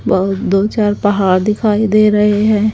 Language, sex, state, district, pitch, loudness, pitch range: Hindi, female, Haryana, Charkhi Dadri, 210 Hz, -13 LUFS, 195-215 Hz